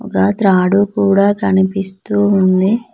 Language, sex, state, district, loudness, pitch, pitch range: Telugu, female, Telangana, Mahabubabad, -13 LUFS, 195 Hz, 190-205 Hz